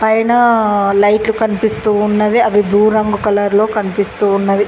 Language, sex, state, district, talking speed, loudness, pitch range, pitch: Telugu, female, Telangana, Mahabubabad, 140 wpm, -13 LUFS, 205-220 Hz, 210 Hz